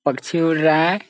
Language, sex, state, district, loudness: Hindi, male, Bihar, Sitamarhi, -18 LUFS